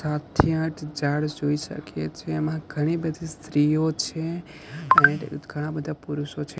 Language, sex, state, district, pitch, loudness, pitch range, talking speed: Gujarati, male, Gujarat, Gandhinagar, 150 Hz, -25 LUFS, 150-160 Hz, 145 wpm